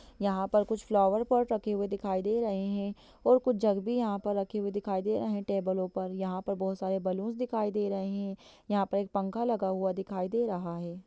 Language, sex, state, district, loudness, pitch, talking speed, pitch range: Hindi, female, Bihar, Lakhisarai, -31 LUFS, 200 Hz, 240 wpm, 190-215 Hz